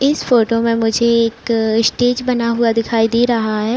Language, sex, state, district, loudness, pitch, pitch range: Hindi, female, Uttar Pradesh, Budaun, -15 LUFS, 230 Hz, 225-240 Hz